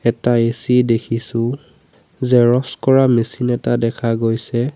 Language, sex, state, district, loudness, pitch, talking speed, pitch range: Assamese, male, Assam, Sonitpur, -17 LUFS, 120 Hz, 115 wpm, 115-125 Hz